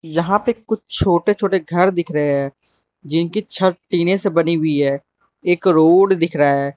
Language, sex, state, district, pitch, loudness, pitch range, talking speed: Hindi, male, Arunachal Pradesh, Lower Dibang Valley, 175 Hz, -17 LUFS, 160-195 Hz, 185 wpm